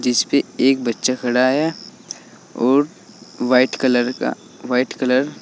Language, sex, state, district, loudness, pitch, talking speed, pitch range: Hindi, male, Uttar Pradesh, Saharanpur, -18 LUFS, 130 Hz, 130 wpm, 125-145 Hz